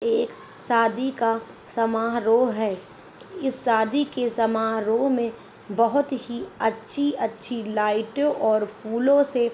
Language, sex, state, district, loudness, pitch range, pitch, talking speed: Hindi, female, Rajasthan, Churu, -24 LUFS, 225-265 Hz, 230 Hz, 115 wpm